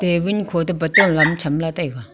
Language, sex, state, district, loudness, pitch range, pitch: Wancho, female, Arunachal Pradesh, Longding, -18 LUFS, 155-175 Hz, 165 Hz